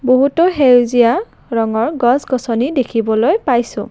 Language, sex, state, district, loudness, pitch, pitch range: Assamese, female, Assam, Kamrup Metropolitan, -14 LUFS, 245 Hz, 230-265 Hz